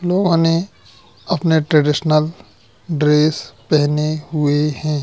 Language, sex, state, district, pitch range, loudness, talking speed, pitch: Hindi, male, Madhya Pradesh, Katni, 150-165 Hz, -17 LUFS, 85 wpm, 155 Hz